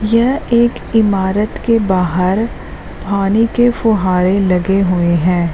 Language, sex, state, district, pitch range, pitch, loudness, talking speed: Hindi, female, Jharkhand, Jamtara, 185-225 Hz, 200 Hz, -14 LUFS, 120 wpm